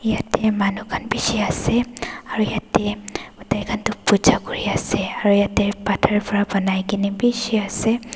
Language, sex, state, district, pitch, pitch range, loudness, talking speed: Nagamese, female, Nagaland, Dimapur, 210 Hz, 200-230 Hz, -21 LUFS, 145 wpm